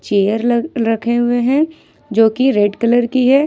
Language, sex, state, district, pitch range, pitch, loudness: Hindi, female, Jharkhand, Ranchi, 225-255 Hz, 240 Hz, -15 LUFS